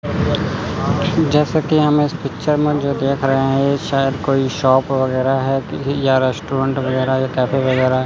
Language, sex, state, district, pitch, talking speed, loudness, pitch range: Hindi, male, Chandigarh, Chandigarh, 135 Hz, 170 wpm, -17 LUFS, 130-145 Hz